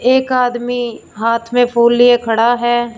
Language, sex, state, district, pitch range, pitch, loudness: Hindi, female, Punjab, Fazilka, 235-245 Hz, 240 Hz, -14 LUFS